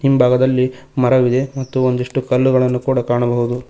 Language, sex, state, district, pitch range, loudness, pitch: Kannada, male, Karnataka, Koppal, 125-130 Hz, -16 LUFS, 125 Hz